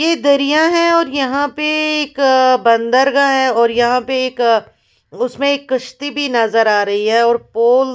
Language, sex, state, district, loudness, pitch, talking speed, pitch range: Hindi, female, Odisha, Khordha, -14 LUFS, 260 Hz, 160 wpm, 235-285 Hz